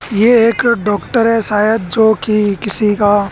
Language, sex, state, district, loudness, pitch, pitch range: Hindi, male, Haryana, Jhajjar, -13 LUFS, 215 Hz, 205-230 Hz